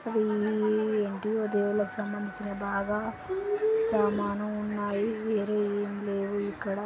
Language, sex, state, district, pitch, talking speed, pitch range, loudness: Telugu, female, Andhra Pradesh, Srikakulam, 210 Hz, 95 wpm, 205-215 Hz, -30 LUFS